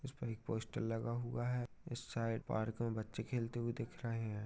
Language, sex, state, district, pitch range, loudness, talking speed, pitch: Hindi, male, Bihar, Jahanabad, 115-120 Hz, -42 LUFS, 230 wpm, 115 Hz